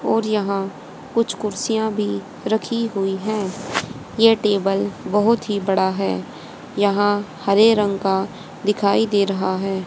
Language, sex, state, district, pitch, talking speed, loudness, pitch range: Hindi, female, Haryana, Jhajjar, 200 Hz, 135 wpm, -20 LUFS, 195-215 Hz